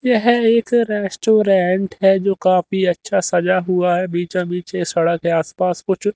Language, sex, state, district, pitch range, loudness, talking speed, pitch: Hindi, male, Haryana, Jhajjar, 180-205 Hz, -17 LUFS, 155 wpm, 185 Hz